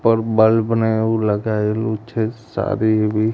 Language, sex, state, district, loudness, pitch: Gujarati, male, Gujarat, Gandhinagar, -18 LUFS, 110 Hz